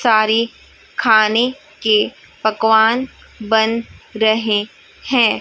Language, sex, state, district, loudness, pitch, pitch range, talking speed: Hindi, female, Chhattisgarh, Raipur, -16 LUFS, 220 Hz, 220-235 Hz, 80 wpm